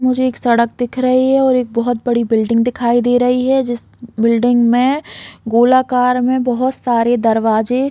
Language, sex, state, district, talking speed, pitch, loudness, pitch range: Hindi, female, Chhattisgarh, Raigarh, 175 wpm, 245 Hz, -14 LUFS, 235-255 Hz